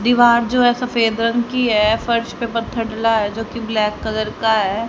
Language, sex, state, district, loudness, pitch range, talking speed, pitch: Hindi, female, Haryana, Rohtak, -18 LUFS, 220-235 Hz, 220 wpm, 230 Hz